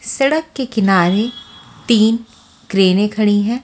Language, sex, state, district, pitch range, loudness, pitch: Hindi, female, Haryana, Charkhi Dadri, 205-240 Hz, -15 LUFS, 220 Hz